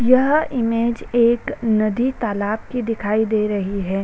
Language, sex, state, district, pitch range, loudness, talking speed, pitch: Hindi, female, Bihar, Saran, 210-240 Hz, -20 LUFS, 150 wpm, 230 Hz